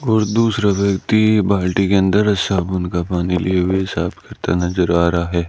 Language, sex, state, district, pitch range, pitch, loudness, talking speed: Hindi, male, Rajasthan, Bikaner, 90-100 Hz, 95 Hz, -17 LUFS, 185 wpm